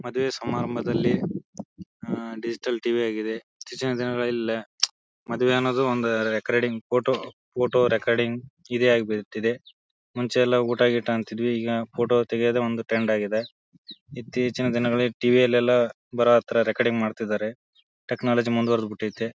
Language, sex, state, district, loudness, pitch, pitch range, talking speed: Kannada, male, Karnataka, Bijapur, -24 LUFS, 120 Hz, 115-125 Hz, 125 wpm